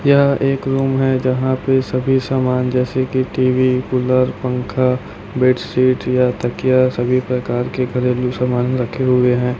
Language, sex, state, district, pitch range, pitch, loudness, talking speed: Hindi, male, Chhattisgarh, Raipur, 125-130 Hz, 130 Hz, -17 LUFS, 150 wpm